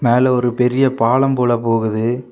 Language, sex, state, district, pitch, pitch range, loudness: Tamil, male, Tamil Nadu, Kanyakumari, 120 Hz, 115-130 Hz, -16 LUFS